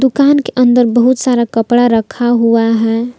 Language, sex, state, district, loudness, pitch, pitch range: Hindi, female, Jharkhand, Palamu, -11 LUFS, 240 Hz, 230-255 Hz